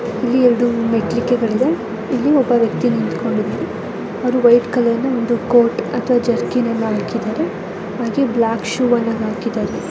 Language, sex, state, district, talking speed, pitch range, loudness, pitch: Kannada, female, Karnataka, Chamarajanagar, 140 wpm, 225-245 Hz, -17 LUFS, 235 Hz